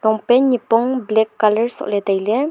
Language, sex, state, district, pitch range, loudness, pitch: Wancho, female, Arunachal Pradesh, Longding, 215-245 Hz, -17 LUFS, 225 Hz